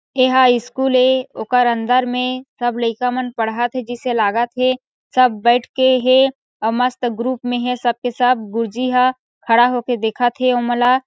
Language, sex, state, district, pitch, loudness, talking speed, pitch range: Chhattisgarhi, female, Chhattisgarh, Sarguja, 250 Hz, -17 LUFS, 185 wpm, 240-255 Hz